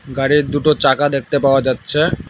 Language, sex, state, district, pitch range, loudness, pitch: Bengali, male, West Bengal, Alipurduar, 135-150 Hz, -15 LUFS, 140 Hz